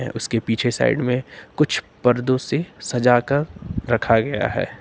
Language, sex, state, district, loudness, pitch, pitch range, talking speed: Hindi, male, Uttar Pradesh, Lucknow, -21 LUFS, 125 Hz, 115-135 Hz, 135 wpm